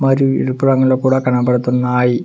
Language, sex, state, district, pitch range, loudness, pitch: Telugu, male, Telangana, Mahabubabad, 125-135 Hz, -14 LUFS, 130 Hz